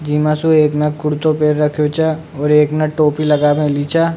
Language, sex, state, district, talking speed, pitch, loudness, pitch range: Rajasthani, male, Rajasthan, Nagaur, 215 wpm, 150 Hz, -15 LUFS, 150-155 Hz